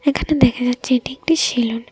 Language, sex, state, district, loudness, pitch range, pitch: Bengali, female, Tripura, West Tripura, -18 LUFS, 240-285 Hz, 255 Hz